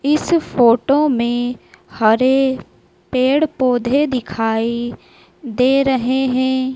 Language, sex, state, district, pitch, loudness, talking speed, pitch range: Hindi, female, Madhya Pradesh, Dhar, 255 Hz, -16 LUFS, 90 wpm, 240-270 Hz